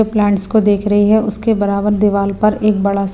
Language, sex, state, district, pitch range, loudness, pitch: Hindi, female, Himachal Pradesh, Shimla, 200-215 Hz, -14 LUFS, 205 Hz